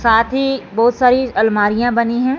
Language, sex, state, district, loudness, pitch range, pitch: Hindi, female, Punjab, Fazilka, -15 LUFS, 225-260 Hz, 240 Hz